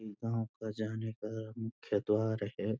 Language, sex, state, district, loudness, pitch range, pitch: Hindi, male, Uttarakhand, Uttarkashi, -37 LUFS, 105-110 Hz, 110 Hz